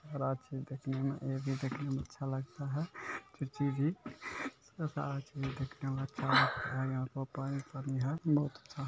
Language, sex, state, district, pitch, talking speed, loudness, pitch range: Hindi, male, Bihar, Araria, 135 Hz, 95 wpm, -37 LUFS, 135-145 Hz